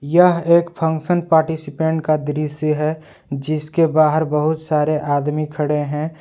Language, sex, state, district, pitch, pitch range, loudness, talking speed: Hindi, male, Jharkhand, Palamu, 155 Hz, 150-160 Hz, -18 LUFS, 135 wpm